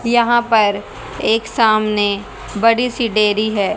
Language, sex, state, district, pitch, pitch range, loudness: Hindi, female, Haryana, Rohtak, 220 Hz, 210-235 Hz, -16 LUFS